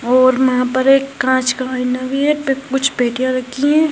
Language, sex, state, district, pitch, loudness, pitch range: Hindi, female, Maharashtra, Aurangabad, 260 Hz, -16 LUFS, 255-270 Hz